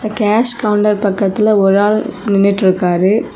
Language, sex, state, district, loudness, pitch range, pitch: Tamil, female, Tamil Nadu, Kanyakumari, -13 LUFS, 195-215 Hz, 205 Hz